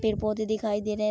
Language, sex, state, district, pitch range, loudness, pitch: Hindi, female, Bihar, Araria, 210-220 Hz, -28 LUFS, 215 Hz